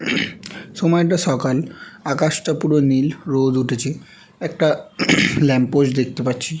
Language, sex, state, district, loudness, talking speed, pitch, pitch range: Bengali, male, West Bengal, Jhargram, -19 LUFS, 120 wpm, 145 Hz, 130-165 Hz